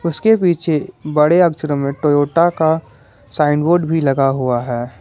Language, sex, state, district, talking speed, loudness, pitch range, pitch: Hindi, male, Jharkhand, Garhwa, 155 wpm, -16 LUFS, 135-165 Hz, 150 Hz